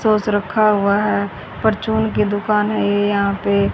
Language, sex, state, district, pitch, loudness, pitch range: Hindi, female, Haryana, Rohtak, 210 Hz, -18 LUFS, 200-215 Hz